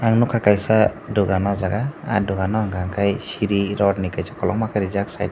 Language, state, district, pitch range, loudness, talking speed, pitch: Kokborok, Tripura, Dhalai, 95-110 Hz, -21 LUFS, 215 wpm, 100 Hz